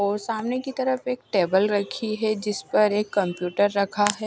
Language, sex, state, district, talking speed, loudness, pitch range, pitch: Hindi, female, Odisha, Nuapada, 195 wpm, -24 LUFS, 200-220 Hz, 210 Hz